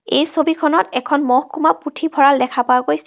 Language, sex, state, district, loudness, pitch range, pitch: Assamese, female, Assam, Kamrup Metropolitan, -16 LUFS, 255-315 Hz, 280 Hz